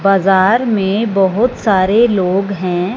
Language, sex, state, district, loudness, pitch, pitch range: Hindi, male, Punjab, Fazilka, -13 LUFS, 195 Hz, 190-225 Hz